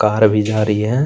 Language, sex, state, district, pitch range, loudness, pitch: Hindi, male, Chhattisgarh, Kabirdham, 105-110 Hz, -16 LUFS, 110 Hz